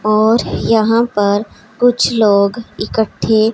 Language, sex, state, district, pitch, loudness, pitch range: Hindi, female, Punjab, Pathankot, 220 Hz, -14 LUFS, 210-230 Hz